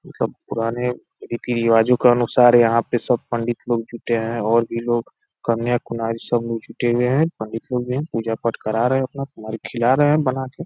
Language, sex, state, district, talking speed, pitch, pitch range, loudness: Hindi, male, Uttar Pradesh, Deoria, 220 wpm, 120 Hz, 115-125 Hz, -20 LUFS